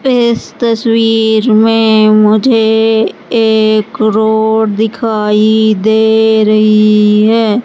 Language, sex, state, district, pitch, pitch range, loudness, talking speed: Hindi, male, Madhya Pradesh, Katni, 220 Hz, 215-225 Hz, -9 LUFS, 80 wpm